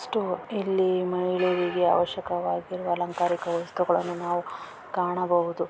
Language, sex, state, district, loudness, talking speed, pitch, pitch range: Kannada, female, Karnataka, Bellary, -27 LUFS, 75 wpm, 180 Hz, 175-185 Hz